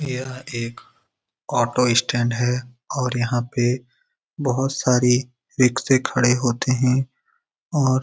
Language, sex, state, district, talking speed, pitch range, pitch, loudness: Hindi, male, Bihar, Lakhisarai, 120 wpm, 120-130 Hz, 125 Hz, -21 LUFS